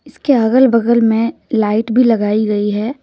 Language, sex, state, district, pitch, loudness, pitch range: Hindi, female, Jharkhand, Deoghar, 230 Hz, -14 LUFS, 215-250 Hz